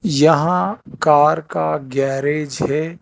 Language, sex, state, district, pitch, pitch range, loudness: Hindi, male, Telangana, Hyderabad, 150 Hz, 140-160 Hz, -17 LUFS